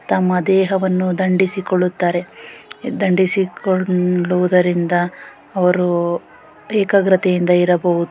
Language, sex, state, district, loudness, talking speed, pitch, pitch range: Kannada, female, Karnataka, Gulbarga, -17 LUFS, 60 wpm, 185 Hz, 180-190 Hz